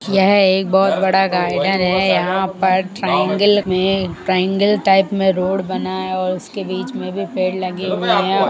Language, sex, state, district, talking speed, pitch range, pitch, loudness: Hindi, male, Uttar Pradesh, Jalaun, 175 wpm, 185-195 Hz, 190 Hz, -17 LUFS